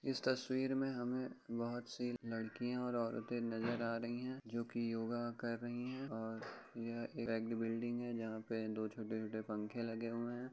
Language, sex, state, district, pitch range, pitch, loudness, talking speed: Hindi, male, Uttar Pradesh, Jyotiba Phule Nagar, 115-120 Hz, 115 Hz, -42 LUFS, 175 wpm